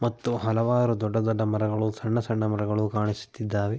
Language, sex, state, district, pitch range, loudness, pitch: Kannada, male, Karnataka, Mysore, 105-115 Hz, -26 LUFS, 110 Hz